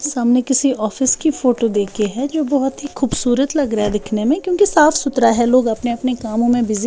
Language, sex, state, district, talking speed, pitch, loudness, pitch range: Hindi, female, Bihar, Patna, 225 wpm, 250 Hz, -16 LUFS, 230-280 Hz